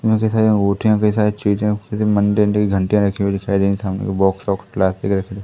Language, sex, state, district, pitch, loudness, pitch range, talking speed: Hindi, male, Madhya Pradesh, Katni, 100 Hz, -17 LUFS, 100-105 Hz, 220 wpm